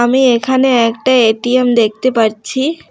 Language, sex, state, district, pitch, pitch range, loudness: Bengali, female, West Bengal, Alipurduar, 245 Hz, 230-260 Hz, -12 LUFS